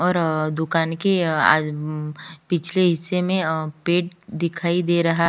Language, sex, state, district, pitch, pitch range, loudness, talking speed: Hindi, female, Chhattisgarh, Kabirdham, 170 Hz, 155-175 Hz, -21 LUFS, 170 wpm